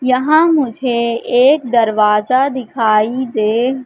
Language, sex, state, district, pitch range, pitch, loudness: Hindi, female, Madhya Pradesh, Katni, 225-260 Hz, 250 Hz, -14 LUFS